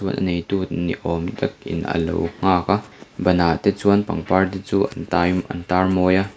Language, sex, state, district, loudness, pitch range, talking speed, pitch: Mizo, male, Mizoram, Aizawl, -21 LUFS, 85-100 Hz, 200 wpm, 95 Hz